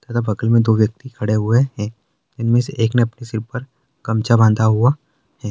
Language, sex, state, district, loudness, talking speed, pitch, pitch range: Hindi, male, Uttar Pradesh, Varanasi, -18 LUFS, 205 wpm, 115 Hz, 110-125 Hz